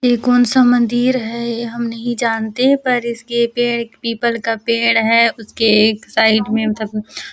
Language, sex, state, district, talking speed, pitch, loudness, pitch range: Hindi, female, Chhattisgarh, Balrampur, 165 wpm, 235 Hz, -16 LUFS, 225-240 Hz